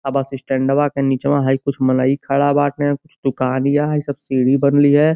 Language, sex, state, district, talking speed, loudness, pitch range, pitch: Bhojpuri, male, Uttar Pradesh, Gorakhpur, 195 wpm, -17 LUFS, 135-145 Hz, 140 Hz